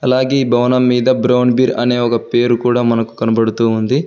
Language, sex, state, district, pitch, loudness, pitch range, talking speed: Telugu, male, Telangana, Hyderabad, 120 Hz, -14 LUFS, 115-125 Hz, 175 wpm